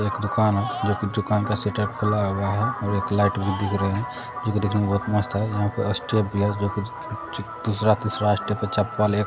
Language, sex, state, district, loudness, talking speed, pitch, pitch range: Hindi, male, Bihar, Saran, -24 LUFS, 245 wpm, 105 Hz, 100-105 Hz